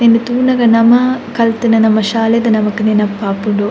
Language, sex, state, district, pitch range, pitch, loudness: Tulu, female, Karnataka, Dakshina Kannada, 210-235 Hz, 225 Hz, -12 LUFS